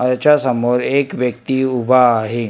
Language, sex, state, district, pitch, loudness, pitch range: Marathi, male, Maharashtra, Gondia, 125 Hz, -15 LUFS, 120-130 Hz